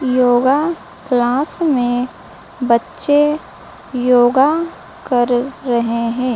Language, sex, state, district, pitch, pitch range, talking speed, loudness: Hindi, female, Madhya Pradesh, Dhar, 250 Hz, 245-290 Hz, 75 wpm, -16 LUFS